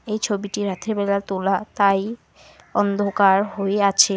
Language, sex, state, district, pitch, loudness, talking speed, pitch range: Bengali, female, West Bengal, Alipurduar, 200 Hz, -21 LUFS, 115 wpm, 195-205 Hz